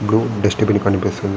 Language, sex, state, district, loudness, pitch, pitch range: Telugu, male, Andhra Pradesh, Srikakulam, -17 LUFS, 105 Hz, 100-110 Hz